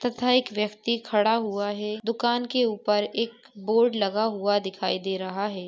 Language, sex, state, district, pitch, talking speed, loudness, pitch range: Hindi, female, West Bengal, Dakshin Dinajpur, 215 Hz, 170 wpm, -25 LUFS, 205-235 Hz